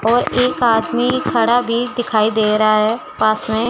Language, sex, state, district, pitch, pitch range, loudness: Hindi, female, Chandigarh, Chandigarh, 235 Hz, 215-245 Hz, -16 LUFS